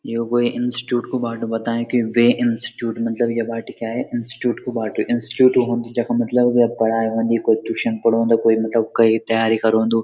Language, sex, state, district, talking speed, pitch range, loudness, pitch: Garhwali, male, Uttarakhand, Uttarkashi, 190 wpm, 115-120 Hz, -19 LUFS, 115 Hz